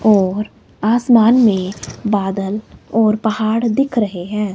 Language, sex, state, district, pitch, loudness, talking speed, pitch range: Hindi, female, Himachal Pradesh, Shimla, 215 Hz, -16 LUFS, 120 wpm, 200-225 Hz